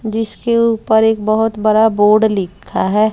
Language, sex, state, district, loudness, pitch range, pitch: Hindi, female, Bihar, West Champaran, -14 LUFS, 215-225 Hz, 220 Hz